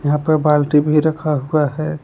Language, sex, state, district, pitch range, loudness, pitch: Hindi, male, Jharkhand, Palamu, 150-155 Hz, -16 LUFS, 150 Hz